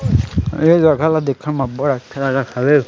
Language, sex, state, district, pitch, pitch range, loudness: Chhattisgarhi, male, Chhattisgarh, Sarguja, 135 Hz, 125-150 Hz, -16 LUFS